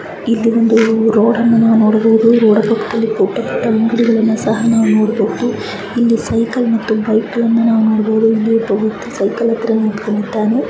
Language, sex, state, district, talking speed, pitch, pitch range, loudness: Kannada, female, Karnataka, Bijapur, 135 wpm, 225 Hz, 220-230 Hz, -13 LUFS